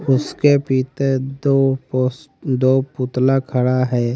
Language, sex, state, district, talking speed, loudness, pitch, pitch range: Hindi, male, Haryana, Rohtak, 115 wpm, -18 LUFS, 130 Hz, 130-135 Hz